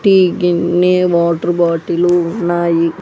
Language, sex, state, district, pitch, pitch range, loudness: Telugu, female, Andhra Pradesh, Sri Satya Sai, 175 Hz, 170-180 Hz, -14 LUFS